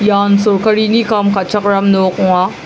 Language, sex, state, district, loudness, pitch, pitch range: Garo, male, Meghalaya, South Garo Hills, -12 LUFS, 200 Hz, 195-210 Hz